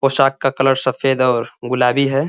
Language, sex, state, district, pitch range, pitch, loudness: Hindi, male, Uttar Pradesh, Ghazipur, 125-135 Hz, 135 Hz, -16 LUFS